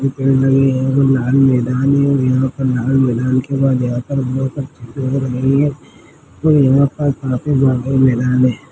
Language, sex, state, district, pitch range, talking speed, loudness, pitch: Hindi, male, Chhattisgarh, Jashpur, 130-135 Hz, 110 wpm, -15 LUFS, 135 Hz